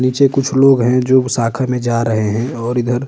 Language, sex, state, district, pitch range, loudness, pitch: Hindi, male, Uttar Pradesh, Budaun, 120-130 Hz, -15 LUFS, 125 Hz